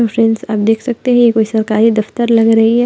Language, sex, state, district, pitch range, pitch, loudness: Hindi, female, Bihar, Muzaffarpur, 220-235 Hz, 225 Hz, -12 LUFS